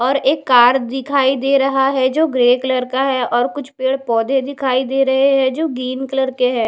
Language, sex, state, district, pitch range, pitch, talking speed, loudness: Hindi, female, Odisha, Nuapada, 255-270 Hz, 265 Hz, 225 wpm, -16 LUFS